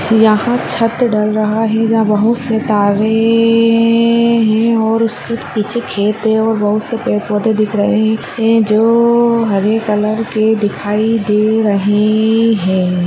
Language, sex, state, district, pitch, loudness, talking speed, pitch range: Hindi, female, Chhattisgarh, Sarguja, 220 Hz, -13 LUFS, 150 wpm, 210-230 Hz